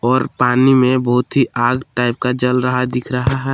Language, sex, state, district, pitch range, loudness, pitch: Hindi, male, Jharkhand, Palamu, 125-130 Hz, -16 LUFS, 125 Hz